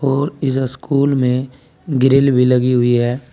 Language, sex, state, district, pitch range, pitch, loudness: Hindi, male, Uttar Pradesh, Saharanpur, 125-140 Hz, 130 Hz, -15 LUFS